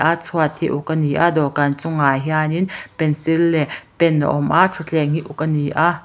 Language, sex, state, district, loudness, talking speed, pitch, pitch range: Mizo, female, Mizoram, Aizawl, -18 LUFS, 200 wpm, 155 Hz, 150-165 Hz